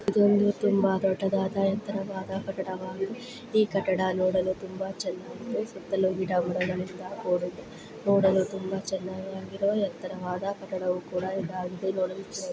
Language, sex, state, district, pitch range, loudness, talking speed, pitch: Kannada, female, Karnataka, Belgaum, 185-195 Hz, -28 LUFS, 110 wpm, 190 Hz